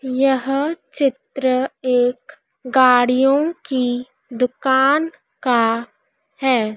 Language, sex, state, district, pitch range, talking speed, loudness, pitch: Hindi, female, Madhya Pradesh, Dhar, 245-275 Hz, 70 wpm, -18 LUFS, 260 Hz